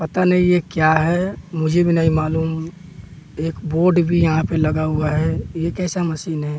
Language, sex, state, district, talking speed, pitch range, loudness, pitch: Hindi, male, Bihar, West Champaran, 190 wpm, 155-175 Hz, -19 LUFS, 160 Hz